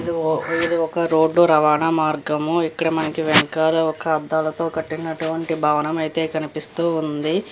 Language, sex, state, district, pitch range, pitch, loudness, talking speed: Telugu, female, Andhra Pradesh, Krishna, 155-165 Hz, 160 Hz, -20 LUFS, 135 wpm